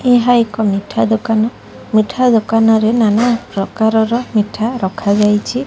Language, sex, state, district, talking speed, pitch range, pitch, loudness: Odia, female, Odisha, Khordha, 125 wpm, 210-235 Hz, 220 Hz, -14 LUFS